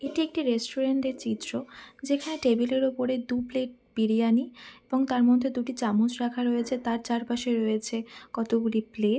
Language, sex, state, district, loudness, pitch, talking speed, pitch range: Bengali, female, West Bengal, Dakshin Dinajpur, -27 LUFS, 245 Hz, 165 wpm, 230-260 Hz